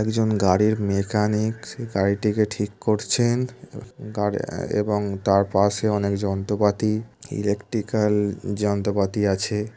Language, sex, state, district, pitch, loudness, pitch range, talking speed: Bengali, male, West Bengal, Kolkata, 105 Hz, -23 LUFS, 100-110 Hz, 115 wpm